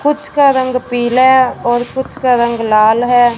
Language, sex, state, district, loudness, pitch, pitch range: Hindi, female, Punjab, Fazilka, -12 LUFS, 245 Hz, 240-260 Hz